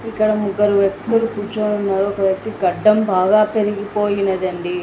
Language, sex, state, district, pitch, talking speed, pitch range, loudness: Telugu, female, Andhra Pradesh, Anantapur, 205 Hz, 135 wpm, 195-215 Hz, -18 LUFS